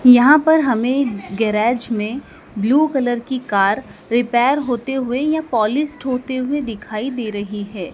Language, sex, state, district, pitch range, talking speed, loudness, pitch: Hindi, male, Madhya Pradesh, Dhar, 215-270 Hz, 150 wpm, -18 LUFS, 245 Hz